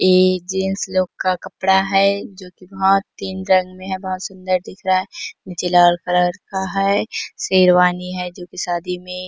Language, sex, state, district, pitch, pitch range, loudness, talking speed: Hindi, female, Chhattisgarh, Bastar, 185 Hz, 180-190 Hz, -19 LUFS, 195 wpm